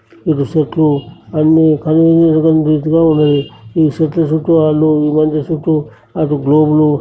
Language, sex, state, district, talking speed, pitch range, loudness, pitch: Telugu, male, Andhra Pradesh, Srikakulam, 135 wpm, 150-160 Hz, -12 LUFS, 155 Hz